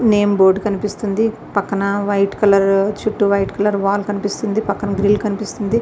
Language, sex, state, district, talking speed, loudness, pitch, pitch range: Telugu, female, Andhra Pradesh, Visakhapatnam, 145 wpm, -17 LUFS, 205 Hz, 200-210 Hz